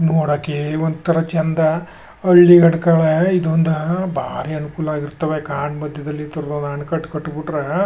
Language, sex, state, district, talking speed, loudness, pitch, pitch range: Kannada, male, Karnataka, Chamarajanagar, 115 wpm, -18 LUFS, 155 Hz, 150-165 Hz